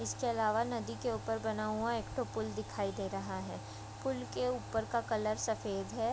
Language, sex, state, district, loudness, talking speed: Hindi, female, Bihar, Vaishali, -37 LUFS, 195 wpm